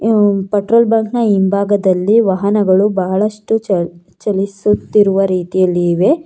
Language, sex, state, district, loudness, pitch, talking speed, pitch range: Kannada, female, Karnataka, Bangalore, -14 LUFS, 200 Hz, 105 wpm, 190-215 Hz